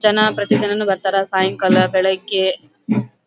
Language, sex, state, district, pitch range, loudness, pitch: Kannada, female, Karnataka, Belgaum, 190-210 Hz, -17 LUFS, 195 Hz